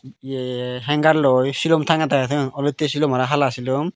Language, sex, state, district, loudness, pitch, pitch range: Chakma, male, Tripura, Dhalai, -19 LUFS, 140 Hz, 130-150 Hz